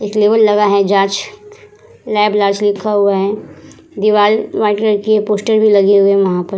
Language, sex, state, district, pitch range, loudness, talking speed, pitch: Hindi, female, Bihar, Vaishali, 200-215 Hz, -13 LUFS, 210 wpm, 210 Hz